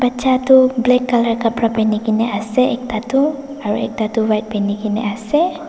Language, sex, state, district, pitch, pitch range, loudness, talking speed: Nagamese, female, Nagaland, Dimapur, 235 Hz, 215-255 Hz, -17 LUFS, 180 wpm